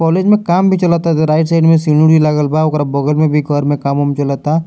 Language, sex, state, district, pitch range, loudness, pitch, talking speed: Bhojpuri, male, Bihar, Muzaffarpur, 145-165 Hz, -12 LUFS, 155 Hz, 285 wpm